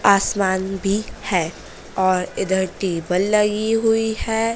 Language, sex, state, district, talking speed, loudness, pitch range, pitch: Hindi, female, Madhya Pradesh, Dhar, 120 wpm, -20 LUFS, 190-220 Hz, 200 Hz